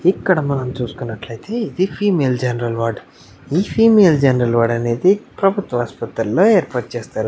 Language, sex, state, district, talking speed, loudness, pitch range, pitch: Telugu, male, Andhra Pradesh, Anantapur, 100 wpm, -17 LUFS, 120-190 Hz, 130 Hz